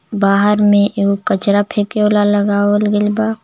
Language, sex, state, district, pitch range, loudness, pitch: Bhojpuri, male, Jharkhand, Palamu, 200-210 Hz, -14 LUFS, 205 Hz